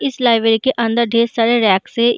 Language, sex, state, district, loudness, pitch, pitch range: Hindi, female, Uttar Pradesh, Jyotiba Phule Nagar, -15 LUFS, 235 Hz, 225-240 Hz